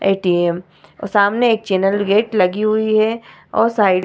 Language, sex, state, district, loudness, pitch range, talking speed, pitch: Hindi, female, Bihar, Vaishali, -16 LUFS, 190-215 Hz, 180 wpm, 205 Hz